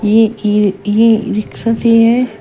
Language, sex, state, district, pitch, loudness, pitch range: Hindi, female, Uttar Pradesh, Shamli, 220 Hz, -12 LUFS, 210-230 Hz